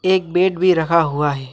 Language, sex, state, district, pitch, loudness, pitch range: Hindi, male, West Bengal, Alipurduar, 170 Hz, -17 LUFS, 150-185 Hz